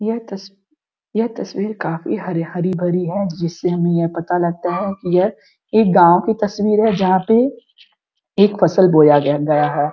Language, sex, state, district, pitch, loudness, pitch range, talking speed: Hindi, female, Uttar Pradesh, Gorakhpur, 185 Hz, -17 LUFS, 170-210 Hz, 170 wpm